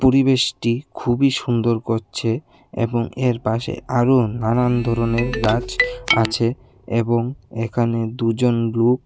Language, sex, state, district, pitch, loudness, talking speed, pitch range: Bengali, male, Tripura, West Tripura, 120 Hz, -20 LUFS, 105 wpm, 115-125 Hz